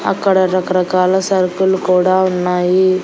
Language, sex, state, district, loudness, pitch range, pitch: Telugu, female, Andhra Pradesh, Annamaya, -14 LUFS, 180-190 Hz, 185 Hz